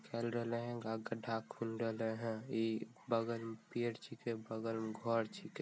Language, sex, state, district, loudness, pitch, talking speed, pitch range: Maithili, male, Bihar, Begusarai, -41 LUFS, 115 Hz, 115 wpm, 110-115 Hz